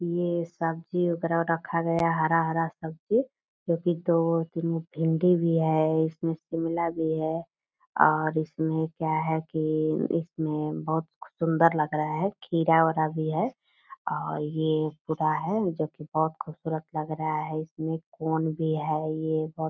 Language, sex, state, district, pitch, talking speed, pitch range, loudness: Hindi, female, Bihar, Purnia, 160 Hz, 130 wpm, 155-165 Hz, -27 LUFS